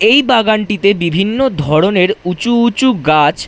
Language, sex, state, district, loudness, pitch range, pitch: Bengali, male, West Bengal, Dakshin Dinajpur, -12 LUFS, 180-235 Hz, 205 Hz